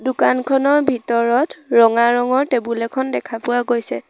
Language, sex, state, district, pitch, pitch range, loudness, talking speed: Assamese, female, Assam, Sonitpur, 245 Hz, 235-265 Hz, -17 LUFS, 130 wpm